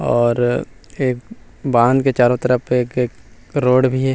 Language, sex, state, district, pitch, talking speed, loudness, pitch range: Chhattisgarhi, male, Chhattisgarh, Rajnandgaon, 125 Hz, 175 wpm, -17 LUFS, 120-130 Hz